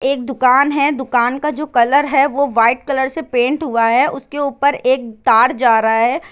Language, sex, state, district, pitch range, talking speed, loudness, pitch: Hindi, female, Bihar, Gopalganj, 245-285 Hz, 210 wpm, -15 LUFS, 265 Hz